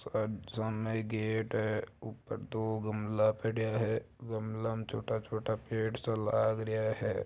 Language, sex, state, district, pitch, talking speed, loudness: Marwari, male, Rajasthan, Churu, 110 Hz, 150 wpm, -35 LUFS